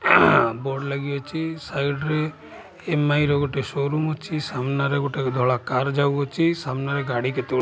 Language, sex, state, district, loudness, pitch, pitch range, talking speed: Odia, male, Odisha, Khordha, -23 LUFS, 140 Hz, 135-155 Hz, 155 wpm